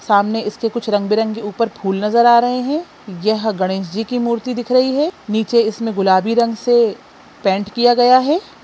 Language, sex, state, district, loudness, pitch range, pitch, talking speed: Hindi, female, Bihar, Jamui, -16 LUFS, 210-245 Hz, 230 Hz, 185 wpm